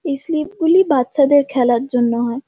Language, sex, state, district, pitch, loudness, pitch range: Bengali, female, West Bengal, Jhargram, 275 Hz, -16 LUFS, 245-305 Hz